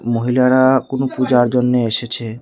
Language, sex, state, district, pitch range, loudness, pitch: Bengali, male, Tripura, Unakoti, 120-130 Hz, -15 LUFS, 125 Hz